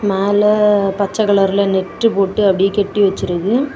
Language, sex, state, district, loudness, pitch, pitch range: Tamil, female, Tamil Nadu, Kanyakumari, -15 LUFS, 200 Hz, 195-210 Hz